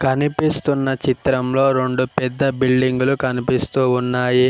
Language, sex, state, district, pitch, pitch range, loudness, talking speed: Telugu, male, Telangana, Mahabubabad, 130 Hz, 125-135 Hz, -18 LUFS, 105 wpm